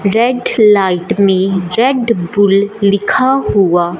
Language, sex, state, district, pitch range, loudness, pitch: Hindi, female, Punjab, Fazilka, 190-230 Hz, -12 LUFS, 200 Hz